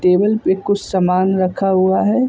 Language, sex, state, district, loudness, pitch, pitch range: Hindi, male, Uttar Pradesh, Budaun, -16 LUFS, 190 Hz, 185-205 Hz